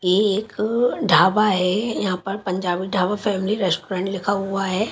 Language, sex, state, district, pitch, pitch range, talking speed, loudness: Hindi, female, Chhattisgarh, Raipur, 195 Hz, 185-210 Hz, 160 wpm, -21 LUFS